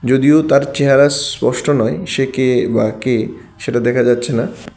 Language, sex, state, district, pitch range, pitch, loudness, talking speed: Bengali, male, Tripura, West Tripura, 120-140 Hz, 130 Hz, -14 LUFS, 165 wpm